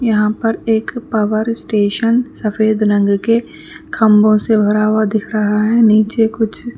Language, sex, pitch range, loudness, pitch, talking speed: Urdu, female, 210-225 Hz, -14 LUFS, 215 Hz, 160 wpm